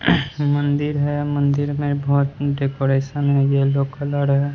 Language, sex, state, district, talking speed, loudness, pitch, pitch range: Hindi, male, Bihar, Katihar, 130 wpm, -20 LUFS, 140 Hz, 140-145 Hz